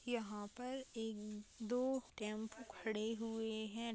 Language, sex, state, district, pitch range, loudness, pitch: Hindi, female, Uttar Pradesh, Deoria, 215-240 Hz, -44 LUFS, 225 Hz